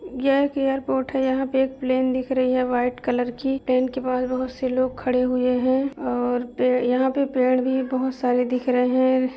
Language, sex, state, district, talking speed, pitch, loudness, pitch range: Hindi, female, Uttar Pradesh, Budaun, 210 wpm, 255 Hz, -22 LUFS, 250-265 Hz